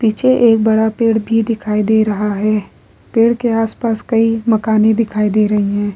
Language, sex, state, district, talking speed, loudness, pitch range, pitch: Hindi, female, Bihar, Vaishali, 190 wpm, -14 LUFS, 215-225 Hz, 220 Hz